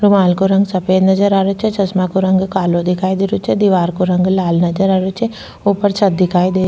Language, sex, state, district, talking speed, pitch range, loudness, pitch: Rajasthani, female, Rajasthan, Nagaur, 260 wpm, 185-195 Hz, -14 LUFS, 190 Hz